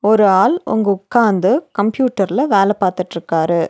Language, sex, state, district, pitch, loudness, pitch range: Tamil, female, Tamil Nadu, Nilgiris, 200 Hz, -15 LUFS, 190-235 Hz